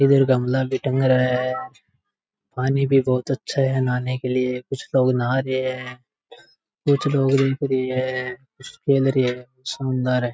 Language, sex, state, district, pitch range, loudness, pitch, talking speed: Rajasthani, male, Rajasthan, Churu, 125-135 Hz, -21 LUFS, 130 Hz, 175 wpm